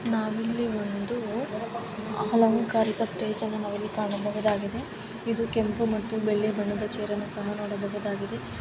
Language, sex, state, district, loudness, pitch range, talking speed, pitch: Kannada, female, Karnataka, Dharwad, -28 LUFS, 210-225 Hz, 120 wpm, 215 Hz